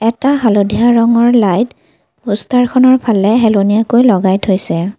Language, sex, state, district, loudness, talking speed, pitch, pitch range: Assamese, female, Assam, Kamrup Metropolitan, -11 LUFS, 110 wpm, 225 Hz, 205-240 Hz